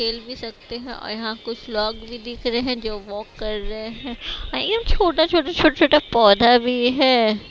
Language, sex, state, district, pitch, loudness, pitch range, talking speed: Hindi, female, Himachal Pradesh, Shimla, 235 Hz, -19 LUFS, 220-255 Hz, 200 wpm